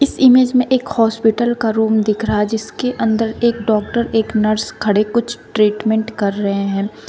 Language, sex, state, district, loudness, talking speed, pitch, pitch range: Hindi, female, Uttar Pradesh, Shamli, -16 LUFS, 185 wpm, 220 Hz, 215-235 Hz